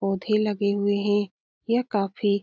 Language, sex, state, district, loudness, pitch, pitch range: Hindi, female, Bihar, Lakhisarai, -24 LUFS, 205 Hz, 200-210 Hz